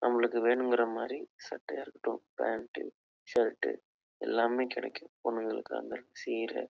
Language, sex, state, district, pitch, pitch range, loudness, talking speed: Tamil, male, Karnataka, Chamarajanagar, 120 Hz, 115-120 Hz, -34 LUFS, 90 wpm